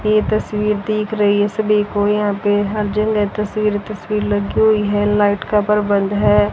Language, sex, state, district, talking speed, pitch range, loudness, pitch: Hindi, female, Haryana, Rohtak, 175 wpm, 205-210 Hz, -17 LUFS, 210 Hz